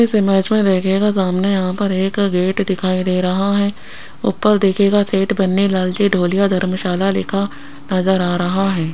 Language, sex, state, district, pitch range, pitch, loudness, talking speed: Hindi, female, Rajasthan, Jaipur, 185-200 Hz, 190 Hz, -16 LUFS, 160 wpm